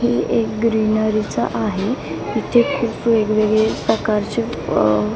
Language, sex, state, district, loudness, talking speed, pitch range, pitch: Marathi, female, Maharashtra, Mumbai Suburban, -18 LUFS, 95 wpm, 210-230 Hz, 215 Hz